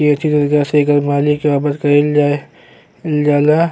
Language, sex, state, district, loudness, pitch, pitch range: Bhojpuri, male, Uttar Pradesh, Gorakhpur, -14 LUFS, 145 Hz, 145-150 Hz